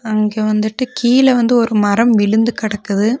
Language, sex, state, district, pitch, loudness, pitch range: Tamil, female, Tamil Nadu, Nilgiris, 220 Hz, -14 LUFS, 215-240 Hz